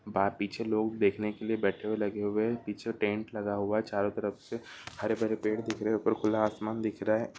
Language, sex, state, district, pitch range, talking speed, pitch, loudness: Hindi, male, Uttar Pradesh, Deoria, 105-110 Hz, 235 wpm, 110 Hz, -32 LUFS